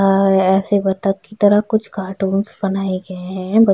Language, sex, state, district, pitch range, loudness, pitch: Hindi, female, Uttar Pradesh, Jyotiba Phule Nagar, 190-205 Hz, -17 LUFS, 195 Hz